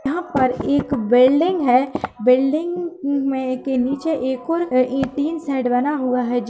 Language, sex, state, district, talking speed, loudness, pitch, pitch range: Hindi, female, Uttar Pradesh, Hamirpur, 140 wpm, -19 LUFS, 270 Hz, 255-300 Hz